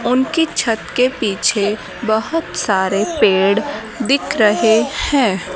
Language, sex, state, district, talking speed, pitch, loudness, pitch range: Hindi, female, Haryana, Charkhi Dadri, 110 wpm, 220 Hz, -16 LUFS, 205-255 Hz